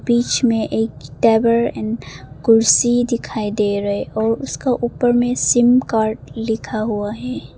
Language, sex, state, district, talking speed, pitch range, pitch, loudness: Hindi, female, Arunachal Pradesh, Papum Pare, 145 wpm, 205-240 Hz, 225 Hz, -17 LUFS